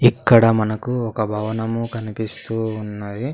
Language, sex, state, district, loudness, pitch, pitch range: Telugu, male, Andhra Pradesh, Sri Satya Sai, -20 LUFS, 110 Hz, 110-115 Hz